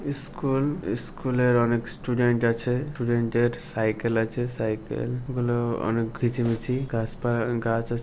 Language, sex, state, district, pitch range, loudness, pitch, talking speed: Bengali, male, West Bengal, Jhargram, 115-125 Hz, -26 LUFS, 120 Hz, 140 wpm